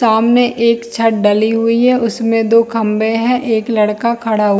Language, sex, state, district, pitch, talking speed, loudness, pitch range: Hindi, female, Jharkhand, Jamtara, 225 Hz, 155 wpm, -13 LUFS, 220-235 Hz